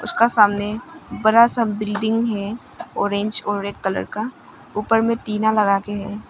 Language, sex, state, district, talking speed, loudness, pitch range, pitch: Hindi, female, Arunachal Pradesh, Longding, 160 wpm, -20 LUFS, 205-230 Hz, 215 Hz